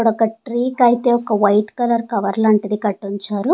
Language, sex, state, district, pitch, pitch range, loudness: Telugu, female, Andhra Pradesh, Sri Satya Sai, 220 Hz, 205-240 Hz, -17 LUFS